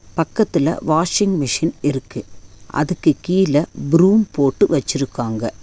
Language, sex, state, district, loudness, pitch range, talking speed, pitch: Tamil, female, Tamil Nadu, Nilgiris, -18 LUFS, 125-175 Hz, 95 wpm, 145 Hz